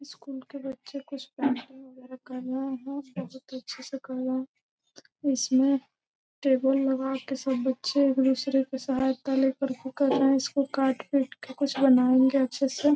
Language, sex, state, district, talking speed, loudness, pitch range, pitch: Hindi, female, Bihar, Gopalganj, 150 wpm, -27 LUFS, 260-275 Hz, 265 Hz